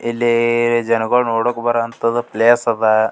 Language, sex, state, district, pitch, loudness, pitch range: Kannada, male, Karnataka, Gulbarga, 115 Hz, -16 LUFS, 115-120 Hz